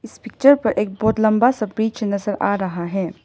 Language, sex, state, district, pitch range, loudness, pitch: Hindi, female, Arunachal Pradesh, Lower Dibang Valley, 200-220 Hz, -19 LUFS, 210 Hz